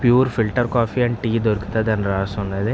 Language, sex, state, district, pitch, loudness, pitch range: Telugu, male, Andhra Pradesh, Visakhapatnam, 110 Hz, -20 LUFS, 100-120 Hz